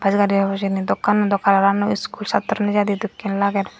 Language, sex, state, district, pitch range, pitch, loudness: Chakma, female, Tripura, Dhalai, 195-205 Hz, 200 Hz, -19 LUFS